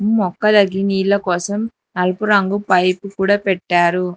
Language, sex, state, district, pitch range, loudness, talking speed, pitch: Telugu, female, Telangana, Hyderabad, 180-205 Hz, -17 LUFS, 115 wpm, 195 Hz